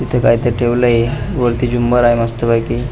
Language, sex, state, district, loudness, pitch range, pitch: Marathi, male, Maharashtra, Pune, -14 LUFS, 115-120 Hz, 120 Hz